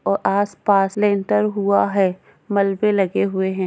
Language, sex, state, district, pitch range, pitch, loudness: Hindi, female, Goa, North and South Goa, 145-200 Hz, 195 Hz, -19 LUFS